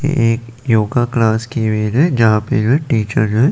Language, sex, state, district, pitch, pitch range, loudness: Hindi, male, Chandigarh, Chandigarh, 115 Hz, 110-130 Hz, -15 LUFS